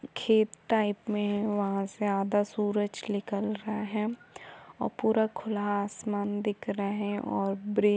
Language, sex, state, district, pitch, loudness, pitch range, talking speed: Hindi, female, Jharkhand, Jamtara, 210 Hz, -30 LUFS, 205-215 Hz, 145 wpm